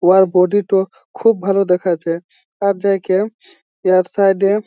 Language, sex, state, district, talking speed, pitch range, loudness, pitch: Bengali, male, West Bengal, Jalpaiguri, 140 wpm, 185-200 Hz, -16 LUFS, 195 Hz